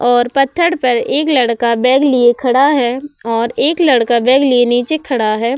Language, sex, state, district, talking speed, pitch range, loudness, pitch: Hindi, female, Uttar Pradesh, Budaun, 185 wpm, 240-275 Hz, -13 LUFS, 250 Hz